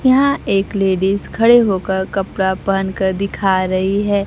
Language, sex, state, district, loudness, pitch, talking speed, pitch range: Hindi, female, Bihar, Kaimur, -16 LUFS, 195 Hz, 155 wpm, 190-205 Hz